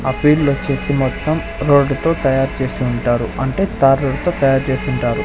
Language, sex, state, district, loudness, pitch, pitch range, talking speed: Telugu, male, Andhra Pradesh, Sri Satya Sai, -16 LUFS, 135 Hz, 130-145 Hz, 170 wpm